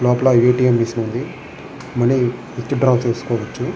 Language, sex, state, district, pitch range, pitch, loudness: Telugu, male, Andhra Pradesh, Srikakulam, 120-125 Hz, 120 Hz, -18 LUFS